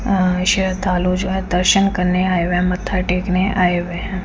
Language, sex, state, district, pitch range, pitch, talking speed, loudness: Hindi, female, Chandigarh, Chandigarh, 180-190 Hz, 185 Hz, 195 wpm, -17 LUFS